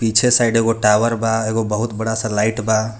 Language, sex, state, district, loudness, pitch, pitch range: Bhojpuri, male, Jharkhand, Palamu, -17 LUFS, 110 Hz, 110-115 Hz